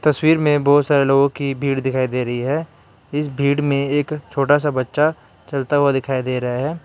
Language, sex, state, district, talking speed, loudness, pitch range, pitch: Hindi, male, Karnataka, Bangalore, 210 wpm, -19 LUFS, 130-145 Hz, 140 Hz